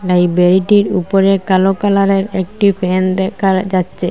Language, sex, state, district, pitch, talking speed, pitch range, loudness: Bengali, female, Assam, Hailakandi, 190 Hz, 115 wpm, 185-195 Hz, -13 LUFS